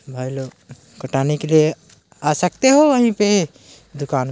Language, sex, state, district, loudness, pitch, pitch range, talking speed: Hindi, male, Chhattisgarh, Korba, -17 LUFS, 150 Hz, 130-180 Hz, 155 wpm